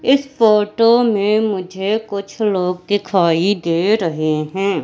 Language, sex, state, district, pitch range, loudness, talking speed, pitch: Hindi, female, Madhya Pradesh, Katni, 180-220 Hz, -16 LUFS, 125 wpm, 200 Hz